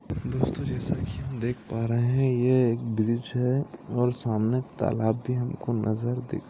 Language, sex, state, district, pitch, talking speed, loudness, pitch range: Hindi, male, Maharashtra, Nagpur, 120 Hz, 175 wpm, -27 LUFS, 115-130 Hz